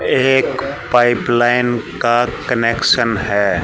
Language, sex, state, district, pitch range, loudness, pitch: Hindi, male, Haryana, Charkhi Dadri, 115-125 Hz, -15 LUFS, 120 Hz